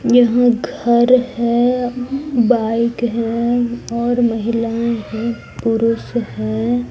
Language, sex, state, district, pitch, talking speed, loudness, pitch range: Hindi, female, Madhya Pradesh, Umaria, 235 Hz, 85 wpm, -17 LUFS, 230-245 Hz